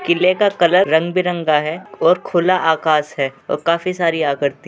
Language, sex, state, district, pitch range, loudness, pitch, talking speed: Hindi, male, Uttar Pradesh, Etah, 150-180 Hz, -16 LUFS, 170 Hz, 195 wpm